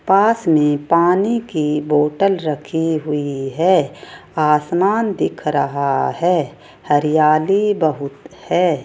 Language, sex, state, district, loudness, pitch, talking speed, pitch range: Hindi, female, Rajasthan, Jaipur, -17 LUFS, 155 Hz, 100 wpm, 150-185 Hz